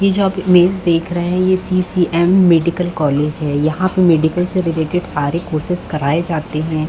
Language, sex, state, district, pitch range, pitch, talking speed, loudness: Hindi, female, Chhattisgarh, Bastar, 155-180 Hz, 175 Hz, 210 wpm, -15 LUFS